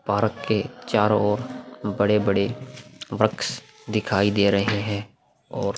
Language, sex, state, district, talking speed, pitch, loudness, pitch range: Hindi, male, Bihar, Vaishali, 125 wpm, 105 Hz, -23 LUFS, 100-125 Hz